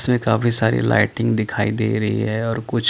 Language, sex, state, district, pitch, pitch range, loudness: Hindi, male, Chandigarh, Chandigarh, 110 Hz, 105-115 Hz, -18 LUFS